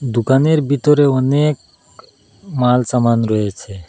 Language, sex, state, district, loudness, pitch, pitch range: Bengali, male, Assam, Hailakandi, -15 LUFS, 130 Hz, 115-145 Hz